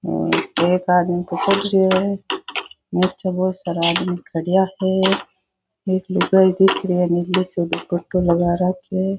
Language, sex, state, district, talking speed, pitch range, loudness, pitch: Rajasthani, female, Rajasthan, Nagaur, 155 wpm, 175-190 Hz, -19 LUFS, 185 Hz